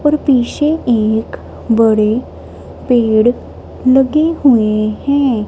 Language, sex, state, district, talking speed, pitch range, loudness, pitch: Hindi, male, Punjab, Kapurthala, 90 wpm, 220-280 Hz, -13 LUFS, 245 Hz